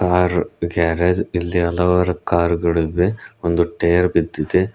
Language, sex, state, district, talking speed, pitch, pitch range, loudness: Kannada, male, Karnataka, Koppal, 115 wpm, 85 Hz, 85-90 Hz, -18 LUFS